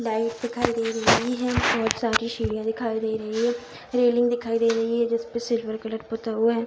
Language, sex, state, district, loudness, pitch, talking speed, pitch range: Hindi, female, Bihar, Saharsa, -24 LUFS, 230 Hz, 205 wpm, 225-240 Hz